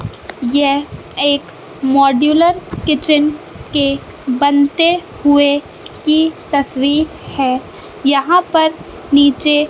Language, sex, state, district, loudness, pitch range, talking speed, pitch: Hindi, female, Madhya Pradesh, Katni, -14 LUFS, 275-315 Hz, 80 wpm, 285 Hz